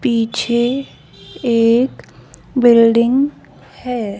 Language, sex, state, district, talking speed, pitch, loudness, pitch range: Hindi, female, Haryana, Charkhi Dadri, 55 wpm, 240 Hz, -15 LUFS, 230-255 Hz